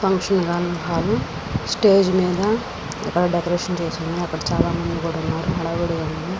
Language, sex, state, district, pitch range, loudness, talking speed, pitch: Telugu, female, Andhra Pradesh, Srikakulam, 165-190 Hz, -21 LUFS, 120 wpm, 175 Hz